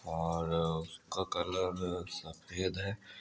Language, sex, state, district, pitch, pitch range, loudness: Hindi, male, Andhra Pradesh, Anantapur, 85 Hz, 80-90 Hz, -36 LUFS